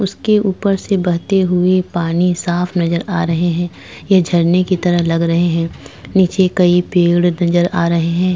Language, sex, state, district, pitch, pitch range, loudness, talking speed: Hindi, female, Goa, North and South Goa, 175 Hz, 170-185 Hz, -15 LUFS, 180 wpm